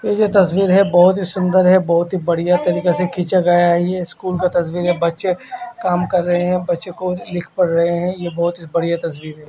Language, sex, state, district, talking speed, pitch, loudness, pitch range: Hindi, male, Odisha, Khordha, 235 wpm, 180 Hz, -17 LUFS, 175-185 Hz